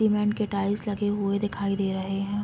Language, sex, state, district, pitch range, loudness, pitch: Hindi, female, Uttarakhand, Tehri Garhwal, 200-210 Hz, -27 LUFS, 205 Hz